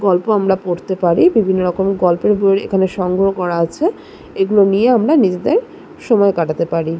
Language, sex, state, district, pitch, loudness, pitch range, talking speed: Bengali, female, West Bengal, Jalpaiguri, 195 Hz, -15 LUFS, 180-210 Hz, 170 wpm